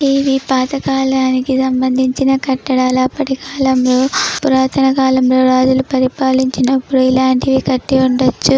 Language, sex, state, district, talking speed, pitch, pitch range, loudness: Telugu, female, Andhra Pradesh, Chittoor, 90 wpm, 260 Hz, 255-270 Hz, -13 LUFS